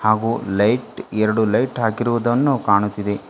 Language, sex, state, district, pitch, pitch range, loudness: Kannada, female, Karnataka, Bidar, 110 Hz, 105-120 Hz, -19 LUFS